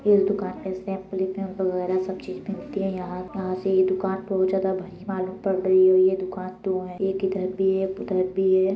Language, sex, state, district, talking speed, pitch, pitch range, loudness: Hindi, female, Uttar Pradesh, Deoria, 205 wpm, 190 Hz, 185-190 Hz, -25 LUFS